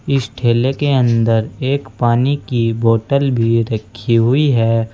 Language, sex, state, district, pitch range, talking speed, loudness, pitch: Hindi, male, Uttar Pradesh, Saharanpur, 115-135 Hz, 145 wpm, -15 LUFS, 120 Hz